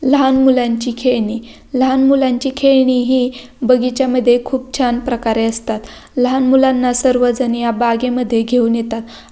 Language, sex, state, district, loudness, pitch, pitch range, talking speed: Marathi, female, Maharashtra, Pune, -15 LUFS, 250 Hz, 235-260 Hz, 130 wpm